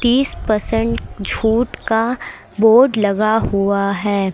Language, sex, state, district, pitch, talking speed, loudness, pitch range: Hindi, female, Uttar Pradesh, Lucknow, 220 Hz, 110 wpm, -16 LUFS, 200-230 Hz